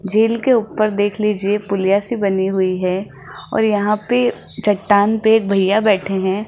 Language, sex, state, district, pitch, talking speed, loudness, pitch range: Hindi, female, Rajasthan, Jaipur, 205 Hz, 175 wpm, -17 LUFS, 195-215 Hz